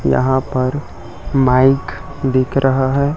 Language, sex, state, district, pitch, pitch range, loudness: Hindi, male, Chhattisgarh, Raipur, 130 Hz, 130-135 Hz, -16 LUFS